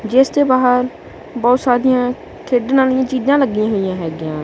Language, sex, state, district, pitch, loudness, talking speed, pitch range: Punjabi, female, Punjab, Kapurthala, 250 Hz, -16 LUFS, 150 wpm, 220-260 Hz